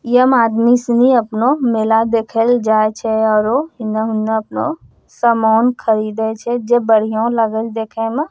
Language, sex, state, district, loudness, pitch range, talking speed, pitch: Angika, female, Bihar, Bhagalpur, -15 LUFS, 220-240 Hz, 135 wpm, 225 Hz